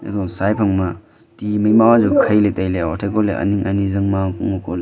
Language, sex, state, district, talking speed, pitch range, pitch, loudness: Wancho, male, Arunachal Pradesh, Longding, 225 wpm, 95-105 Hz, 100 Hz, -17 LUFS